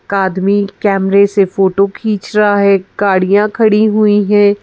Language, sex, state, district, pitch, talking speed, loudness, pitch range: Hindi, female, Madhya Pradesh, Bhopal, 200 Hz, 145 wpm, -12 LUFS, 195-210 Hz